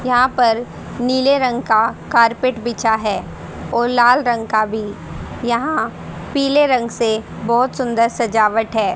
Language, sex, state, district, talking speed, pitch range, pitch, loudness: Hindi, female, Haryana, Jhajjar, 140 wpm, 225-255 Hz, 235 Hz, -17 LUFS